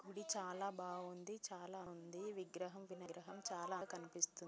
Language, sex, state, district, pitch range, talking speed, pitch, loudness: Telugu, female, Andhra Pradesh, Guntur, 180-195 Hz, 160 wpm, 185 Hz, -48 LUFS